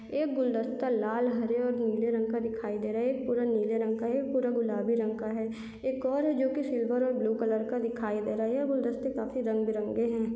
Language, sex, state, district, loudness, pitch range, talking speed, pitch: Hindi, female, Chhattisgarh, Raigarh, -30 LUFS, 225-255 Hz, 245 wpm, 235 Hz